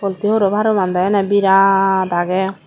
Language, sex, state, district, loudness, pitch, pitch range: Chakma, female, Tripura, Dhalai, -15 LUFS, 195 Hz, 190-200 Hz